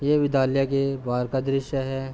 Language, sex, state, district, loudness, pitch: Hindi, male, Uttar Pradesh, Jalaun, -24 LUFS, 135 Hz